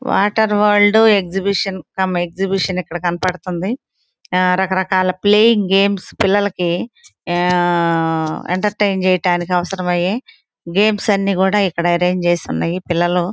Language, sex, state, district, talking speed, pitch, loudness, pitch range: Telugu, female, Andhra Pradesh, Guntur, 115 wpm, 185 Hz, -16 LUFS, 175-205 Hz